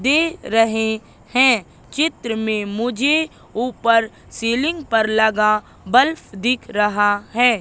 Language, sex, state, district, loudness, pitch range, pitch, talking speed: Hindi, female, Madhya Pradesh, Katni, -18 LUFS, 215-255 Hz, 230 Hz, 110 wpm